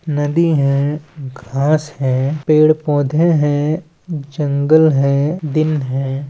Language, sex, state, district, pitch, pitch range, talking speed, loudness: Chhattisgarhi, male, Chhattisgarh, Balrampur, 150 Hz, 140-155 Hz, 105 wpm, -16 LUFS